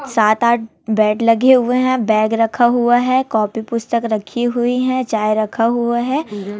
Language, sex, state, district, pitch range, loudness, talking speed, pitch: Hindi, female, Chhattisgarh, Raipur, 220-245 Hz, -16 LUFS, 175 wpm, 235 Hz